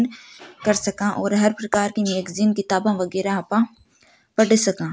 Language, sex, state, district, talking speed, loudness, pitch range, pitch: Marwari, female, Rajasthan, Nagaur, 145 wpm, -21 LUFS, 195-220 Hz, 205 Hz